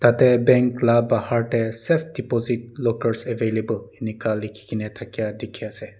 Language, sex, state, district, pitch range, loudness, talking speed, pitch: Nagamese, male, Nagaland, Dimapur, 110-120 Hz, -22 LUFS, 150 wpm, 115 Hz